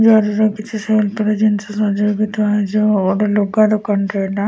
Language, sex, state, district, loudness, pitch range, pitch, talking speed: Odia, female, Odisha, Nuapada, -16 LUFS, 205-215 Hz, 210 Hz, 145 wpm